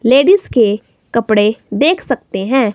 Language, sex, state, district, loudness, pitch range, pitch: Hindi, female, Himachal Pradesh, Shimla, -14 LUFS, 215-275 Hz, 235 Hz